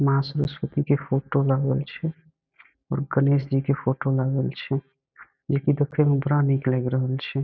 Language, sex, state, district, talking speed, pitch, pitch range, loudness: Maithili, male, Bihar, Saharsa, 175 wpm, 140 Hz, 135-145 Hz, -24 LUFS